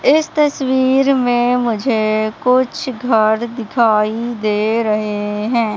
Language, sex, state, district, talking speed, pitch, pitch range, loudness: Hindi, male, Madhya Pradesh, Katni, 105 wpm, 235 Hz, 215-260 Hz, -16 LUFS